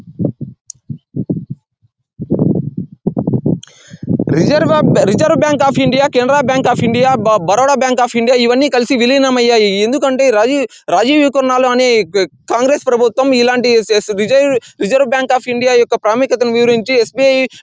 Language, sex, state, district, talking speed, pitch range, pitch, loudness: Telugu, male, Andhra Pradesh, Anantapur, 115 wpm, 220-265 Hz, 245 Hz, -12 LUFS